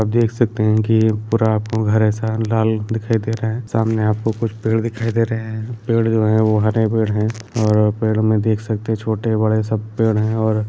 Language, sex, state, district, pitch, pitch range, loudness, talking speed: Hindi, male, Bihar, Lakhisarai, 110 Hz, 110-115 Hz, -18 LUFS, 230 wpm